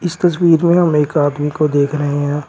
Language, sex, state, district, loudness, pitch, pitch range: Hindi, male, Uttar Pradesh, Shamli, -14 LUFS, 150 Hz, 145-170 Hz